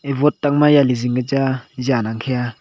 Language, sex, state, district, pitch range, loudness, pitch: Wancho, male, Arunachal Pradesh, Longding, 125-145 Hz, -18 LUFS, 130 Hz